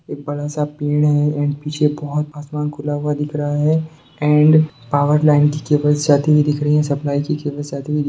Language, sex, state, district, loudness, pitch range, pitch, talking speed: Hindi, male, Bihar, Sitamarhi, -17 LUFS, 145-150 Hz, 150 Hz, 230 wpm